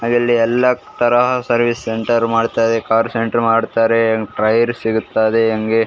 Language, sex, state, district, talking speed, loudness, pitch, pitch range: Kannada, male, Karnataka, Raichur, 135 wpm, -16 LUFS, 115 Hz, 115-120 Hz